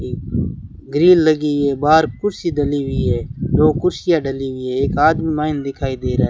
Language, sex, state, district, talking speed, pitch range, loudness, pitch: Hindi, male, Rajasthan, Bikaner, 190 wpm, 135-155 Hz, -17 LUFS, 145 Hz